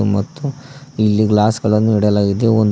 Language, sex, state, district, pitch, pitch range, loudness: Kannada, male, Karnataka, Koppal, 110 Hz, 105-115 Hz, -16 LUFS